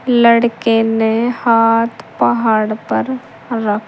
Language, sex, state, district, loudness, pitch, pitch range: Hindi, female, Uttar Pradesh, Saharanpur, -14 LUFS, 230 Hz, 225-235 Hz